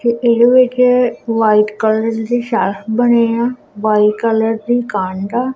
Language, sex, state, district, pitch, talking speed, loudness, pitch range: Punjabi, female, Punjab, Kapurthala, 230 Hz, 150 wpm, -14 LUFS, 215-240 Hz